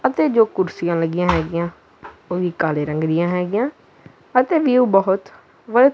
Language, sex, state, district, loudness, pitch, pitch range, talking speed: Punjabi, female, Punjab, Kapurthala, -19 LUFS, 180 Hz, 170-245 Hz, 150 wpm